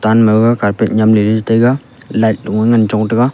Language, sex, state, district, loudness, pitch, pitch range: Wancho, male, Arunachal Pradesh, Longding, -12 LUFS, 110 Hz, 110-120 Hz